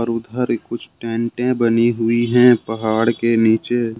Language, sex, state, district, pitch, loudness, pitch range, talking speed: Hindi, male, Jharkhand, Ranchi, 115 Hz, -17 LUFS, 115-120 Hz, 165 wpm